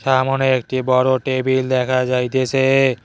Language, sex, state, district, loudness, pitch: Bengali, male, West Bengal, Cooch Behar, -17 LUFS, 130 Hz